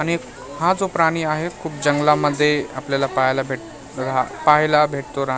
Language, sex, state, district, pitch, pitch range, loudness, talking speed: Marathi, male, Maharashtra, Mumbai Suburban, 145 Hz, 135-155 Hz, -19 LUFS, 165 wpm